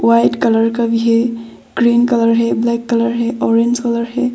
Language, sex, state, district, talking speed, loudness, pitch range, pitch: Hindi, female, Arunachal Pradesh, Longding, 195 wpm, -14 LUFS, 230-235 Hz, 235 Hz